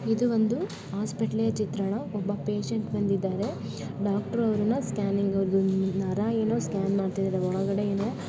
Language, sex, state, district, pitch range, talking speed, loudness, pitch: Kannada, female, Karnataka, Raichur, 195-215 Hz, 125 wpm, -28 LUFS, 200 Hz